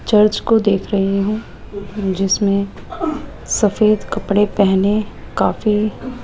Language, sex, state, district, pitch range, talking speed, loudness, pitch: Hindi, female, Rajasthan, Jaipur, 200-215 Hz, 105 wpm, -17 LUFS, 210 Hz